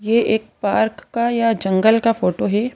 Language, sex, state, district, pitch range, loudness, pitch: Hindi, female, Madhya Pradesh, Bhopal, 215-235 Hz, -18 LUFS, 225 Hz